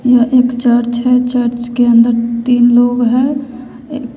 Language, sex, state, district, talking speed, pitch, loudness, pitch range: Hindi, female, Bihar, West Champaran, 145 wpm, 245 Hz, -12 LUFS, 240-250 Hz